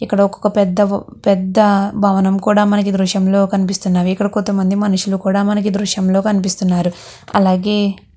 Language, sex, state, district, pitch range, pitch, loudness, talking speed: Telugu, female, Andhra Pradesh, Guntur, 190-205 Hz, 200 Hz, -15 LUFS, 160 wpm